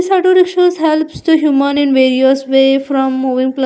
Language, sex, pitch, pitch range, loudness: English, female, 275 Hz, 265-325 Hz, -12 LUFS